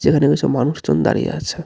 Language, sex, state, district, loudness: Bengali, male, West Bengal, Darjeeling, -17 LUFS